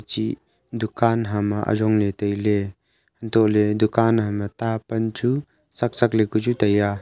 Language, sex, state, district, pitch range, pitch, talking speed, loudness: Wancho, male, Arunachal Pradesh, Longding, 105-115 Hz, 110 Hz, 135 wpm, -22 LUFS